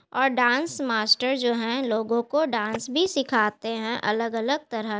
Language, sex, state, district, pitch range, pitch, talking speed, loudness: Hindi, female, Bihar, Gaya, 225-270 Hz, 235 Hz, 155 wpm, -24 LUFS